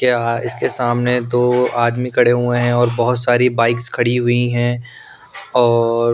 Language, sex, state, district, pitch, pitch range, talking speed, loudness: Hindi, male, Punjab, Pathankot, 120 Hz, 120-125 Hz, 155 wpm, -16 LUFS